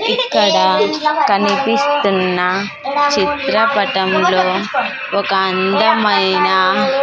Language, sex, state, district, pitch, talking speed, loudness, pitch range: Telugu, female, Andhra Pradesh, Sri Satya Sai, 200 Hz, 45 wpm, -14 LUFS, 190-285 Hz